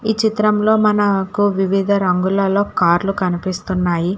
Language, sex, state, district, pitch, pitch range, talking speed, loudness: Telugu, female, Telangana, Hyderabad, 195 Hz, 185-205 Hz, 100 wpm, -16 LUFS